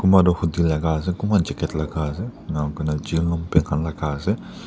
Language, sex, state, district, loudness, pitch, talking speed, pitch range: Nagamese, male, Nagaland, Dimapur, -22 LUFS, 80 Hz, 195 wpm, 75-90 Hz